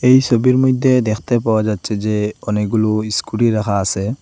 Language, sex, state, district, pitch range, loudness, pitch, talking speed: Bengali, male, Assam, Hailakandi, 105-125 Hz, -16 LUFS, 110 Hz, 155 wpm